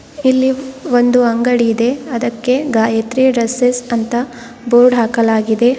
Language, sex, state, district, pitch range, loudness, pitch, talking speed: Kannada, female, Karnataka, Bidar, 235-255 Hz, -14 LUFS, 240 Hz, 115 wpm